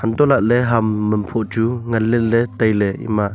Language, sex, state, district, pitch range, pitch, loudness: Wancho, male, Arunachal Pradesh, Longding, 105-120 Hz, 115 Hz, -17 LUFS